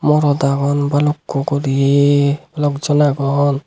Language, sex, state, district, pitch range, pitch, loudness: Chakma, male, Tripura, Unakoti, 140-145 Hz, 140 Hz, -16 LUFS